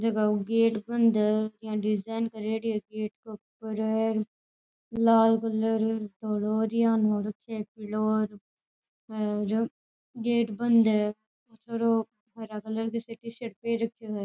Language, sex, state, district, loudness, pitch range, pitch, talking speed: Rajasthani, female, Rajasthan, Churu, -28 LUFS, 215-230 Hz, 220 Hz, 140 wpm